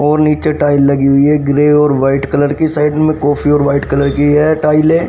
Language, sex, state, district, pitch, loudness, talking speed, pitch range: Hindi, male, Haryana, Rohtak, 145 Hz, -11 LUFS, 235 wpm, 140-150 Hz